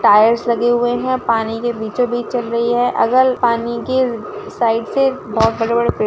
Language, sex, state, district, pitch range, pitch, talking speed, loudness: Hindi, female, Maharashtra, Sindhudurg, 225-245 Hz, 235 Hz, 195 wpm, -16 LUFS